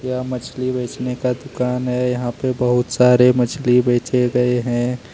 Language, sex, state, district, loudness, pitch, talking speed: Hindi, male, Jharkhand, Deoghar, -18 LUFS, 125 Hz, 175 wpm